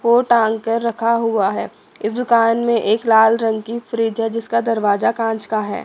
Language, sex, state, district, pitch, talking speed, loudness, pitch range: Hindi, female, Chandigarh, Chandigarh, 225 Hz, 205 wpm, -17 LUFS, 220-230 Hz